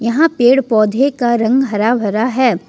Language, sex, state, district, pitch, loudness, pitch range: Hindi, female, Jharkhand, Ranchi, 240 Hz, -14 LUFS, 220-260 Hz